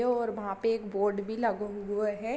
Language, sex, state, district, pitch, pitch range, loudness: Hindi, female, Uttar Pradesh, Varanasi, 210 Hz, 205-225 Hz, -31 LUFS